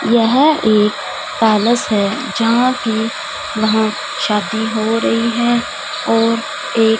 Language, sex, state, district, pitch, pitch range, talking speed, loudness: Hindi, female, Punjab, Fazilka, 230 Hz, 220-240 Hz, 110 wpm, -15 LUFS